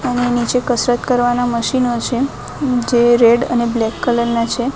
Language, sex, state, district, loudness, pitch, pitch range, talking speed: Gujarati, female, Gujarat, Gandhinagar, -16 LUFS, 240 Hz, 235-250 Hz, 165 wpm